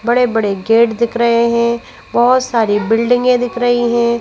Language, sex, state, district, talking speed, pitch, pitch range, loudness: Hindi, female, Madhya Pradesh, Bhopal, 170 wpm, 235 Hz, 230-245 Hz, -14 LUFS